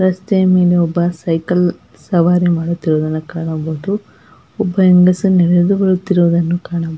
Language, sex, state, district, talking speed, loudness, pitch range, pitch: Kannada, female, Karnataka, Belgaum, 105 wpm, -14 LUFS, 170-185 Hz, 175 Hz